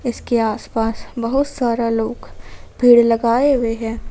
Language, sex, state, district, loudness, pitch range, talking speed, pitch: Hindi, female, Jharkhand, Ranchi, -17 LUFS, 225-245 Hz, 130 wpm, 235 Hz